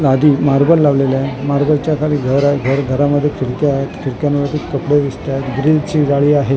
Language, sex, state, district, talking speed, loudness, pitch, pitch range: Marathi, male, Maharashtra, Mumbai Suburban, 180 wpm, -15 LUFS, 140 Hz, 135-145 Hz